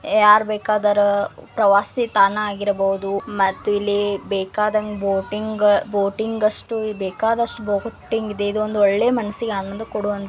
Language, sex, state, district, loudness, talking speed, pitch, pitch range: Kannada, female, Karnataka, Belgaum, -20 LUFS, 85 wpm, 210 Hz, 200-215 Hz